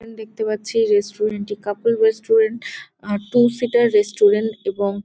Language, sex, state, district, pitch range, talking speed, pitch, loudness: Bengali, female, West Bengal, Jalpaiguri, 205-225 Hz, 130 wpm, 215 Hz, -19 LUFS